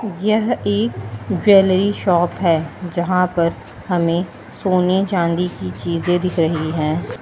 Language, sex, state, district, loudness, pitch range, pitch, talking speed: Hindi, female, Uttar Pradesh, Lalitpur, -18 LUFS, 165-190 Hz, 175 Hz, 125 wpm